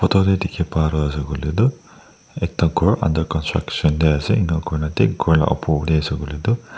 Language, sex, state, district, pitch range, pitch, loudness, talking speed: Nagamese, male, Nagaland, Dimapur, 75-95 Hz, 80 Hz, -19 LUFS, 210 wpm